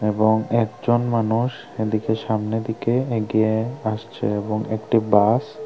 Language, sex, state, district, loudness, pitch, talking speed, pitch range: Bengali, male, Tripura, Unakoti, -21 LUFS, 110 Hz, 125 wpm, 110-115 Hz